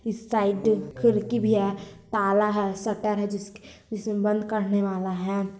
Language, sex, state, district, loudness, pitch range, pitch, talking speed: Hindi, female, Chhattisgarh, Bilaspur, -25 LUFS, 200-215 Hz, 210 Hz, 160 wpm